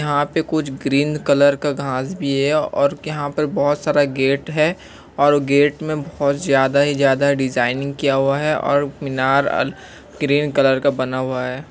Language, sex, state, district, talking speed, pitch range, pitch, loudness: Hindi, male, Bihar, Kishanganj, 180 wpm, 135-150 Hz, 140 Hz, -18 LUFS